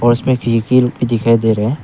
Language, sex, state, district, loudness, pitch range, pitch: Hindi, male, Arunachal Pradesh, Papum Pare, -14 LUFS, 115-125 Hz, 120 Hz